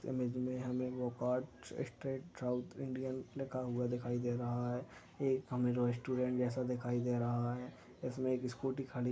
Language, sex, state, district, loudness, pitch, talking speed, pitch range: Hindi, male, Maharashtra, Nagpur, -39 LUFS, 125 Hz, 160 wpm, 125-130 Hz